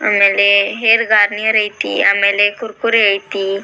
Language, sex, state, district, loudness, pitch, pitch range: Kannada, female, Karnataka, Belgaum, -13 LUFS, 205 Hz, 200-220 Hz